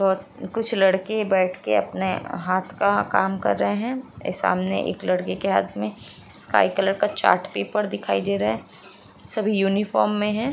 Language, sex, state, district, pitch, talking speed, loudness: Hindi, female, Bihar, Lakhisarai, 190 Hz, 170 wpm, -23 LUFS